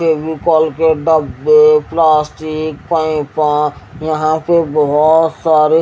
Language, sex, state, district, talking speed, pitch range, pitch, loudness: Hindi, male, Haryana, Jhajjar, 95 wpm, 155-160 Hz, 155 Hz, -13 LUFS